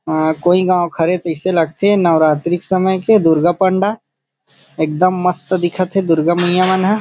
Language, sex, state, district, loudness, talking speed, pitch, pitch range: Chhattisgarhi, male, Chhattisgarh, Kabirdham, -14 LUFS, 170 wpm, 180 Hz, 165-185 Hz